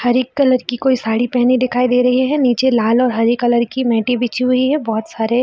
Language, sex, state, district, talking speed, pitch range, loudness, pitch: Hindi, female, Bihar, Jamui, 255 wpm, 235-255 Hz, -15 LUFS, 250 Hz